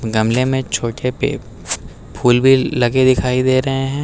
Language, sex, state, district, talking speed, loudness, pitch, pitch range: Hindi, male, Uttar Pradesh, Lucknow, 165 wpm, -16 LUFS, 125 Hz, 115-130 Hz